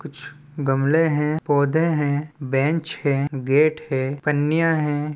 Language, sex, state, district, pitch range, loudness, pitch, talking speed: Chhattisgarhi, male, Chhattisgarh, Balrampur, 140-155 Hz, -21 LUFS, 150 Hz, 130 wpm